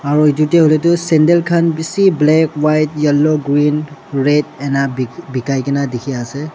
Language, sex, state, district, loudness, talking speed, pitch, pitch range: Nagamese, male, Nagaland, Dimapur, -14 LUFS, 165 wpm, 150 Hz, 140-160 Hz